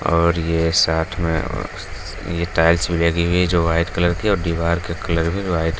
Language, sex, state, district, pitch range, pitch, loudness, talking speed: Hindi, male, Bihar, Gaya, 85-90 Hz, 85 Hz, -19 LUFS, 215 wpm